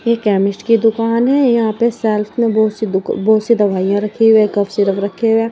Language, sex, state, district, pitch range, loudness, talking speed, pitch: Hindi, female, Odisha, Nuapada, 205-230 Hz, -14 LUFS, 250 wpm, 220 Hz